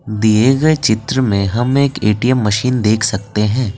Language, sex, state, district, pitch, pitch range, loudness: Hindi, male, Assam, Kamrup Metropolitan, 110 Hz, 105-130 Hz, -14 LUFS